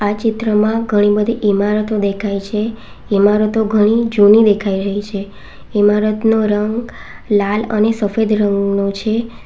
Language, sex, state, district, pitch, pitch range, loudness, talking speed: Gujarati, female, Gujarat, Valsad, 210 Hz, 205-220 Hz, -15 LUFS, 120 wpm